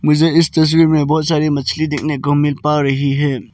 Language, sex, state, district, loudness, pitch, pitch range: Hindi, male, Arunachal Pradesh, Lower Dibang Valley, -15 LUFS, 150 Hz, 145-155 Hz